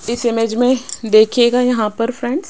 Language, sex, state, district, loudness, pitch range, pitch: Hindi, female, Rajasthan, Jaipur, -15 LUFS, 225-250 Hz, 240 Hz